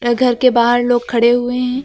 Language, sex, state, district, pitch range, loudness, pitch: Hindi, female, Uttar Pradesh, Lucknow, 240-250 Hz, -14 LUFS, 245 Hz